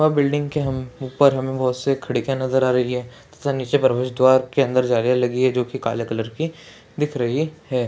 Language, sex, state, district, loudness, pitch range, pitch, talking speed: Hindi, male, Uttarakhand, Tehri Garhwal, -21 LUFS, 125-140 Hz, 130 Hz, 220 wpm